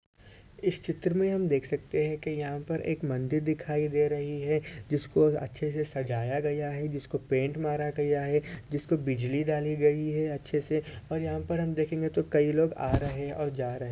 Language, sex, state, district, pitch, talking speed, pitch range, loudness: Hindi, male, Maharashtra, Sindhudurg, 150 Hz, 210 wpm, 140-155 Hz, -30 LUFS